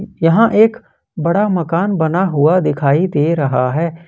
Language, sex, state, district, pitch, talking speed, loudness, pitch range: Hindi, male, Jharkhand, Ranchi, 170 Hz, 145 wpm, -14 LUFS, 155-195 Hz